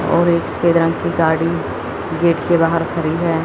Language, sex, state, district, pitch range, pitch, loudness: Hindi, female, Chandigarh, Chandigarh, 165-170 Hz, 170 Hz, -17 LUFS